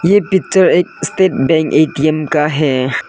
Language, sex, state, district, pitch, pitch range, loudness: Hindi, male, Arunachal Pradesh, Lower Dibang Valley, 155 Hz, 150-185 Hz, -13 LUFS